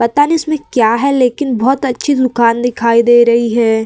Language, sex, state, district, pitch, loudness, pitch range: Hindi, female, Uttar Pradesh, Varanasi, 245 Hz, -12 LUFS, 235-280 Hz